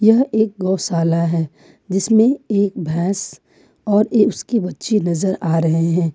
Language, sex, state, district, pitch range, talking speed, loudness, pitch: Hindi, female, Jharkhand, Ranchi, 170-215 Hz, 135 wpm, -18 LUFS, 190 Hz